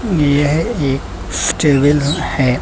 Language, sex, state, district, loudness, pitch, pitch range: Hindi, male, Uttar Pradesh, Budaun, -15 LUFS, 145 Hz, 130-150 Hz